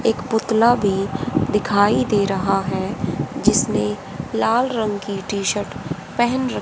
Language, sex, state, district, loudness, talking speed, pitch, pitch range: Hindi, female, Haryana, Rohtak, -20 LUFS, 125 wpm, 205 Hz, 195-225 Hz